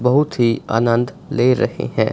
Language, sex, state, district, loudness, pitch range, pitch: Hindi, male, Punjab, Fazilka, -18 LUFS, 115-130 Hz, 125 Hz